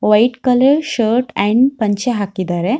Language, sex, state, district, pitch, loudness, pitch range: Kannada, female, Karnataka, Shimoga, 235 Hz, -15 LUFS, 205-260 Hz